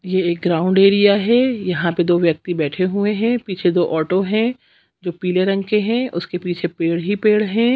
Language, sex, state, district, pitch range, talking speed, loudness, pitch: Hindi, female, Chhattisgarh, Sukma, 175-210 Hz, 210 wpm, -18 LUFS, 185 Hz